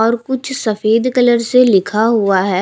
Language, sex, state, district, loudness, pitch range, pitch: Hindi, female, Haryana, Rohtak, -14 LUFS, 215-250 Hz, 230 Hz